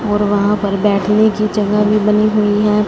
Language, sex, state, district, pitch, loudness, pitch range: Hindi, female, Punjab, Fazilka, 210 Hz, -14 LUFS, 205-210 Hz